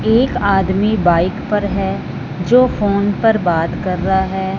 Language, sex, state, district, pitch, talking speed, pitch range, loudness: Hindi, male, Punjab, Fazilka, 195 Hz, 155 wpm, 185-210 Hz, -16 LUFS